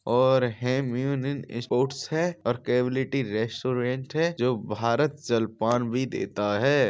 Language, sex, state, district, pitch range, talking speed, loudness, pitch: Hindi, male, Bihar, Samastipur, 120-135 Hz, 120 wpm, -26 LUFS, 125 Hz